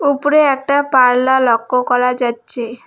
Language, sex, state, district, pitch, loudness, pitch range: Bengali, female, West Bengal, Alipurduar, 250 Hz, -14 LUFS, 245-280 Hz